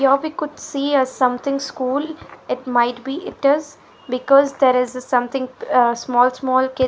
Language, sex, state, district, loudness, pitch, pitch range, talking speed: English, female, Punjab, Fazilka, -19 LUFS, 260 Hz, 250-275 Hz, 175 wpm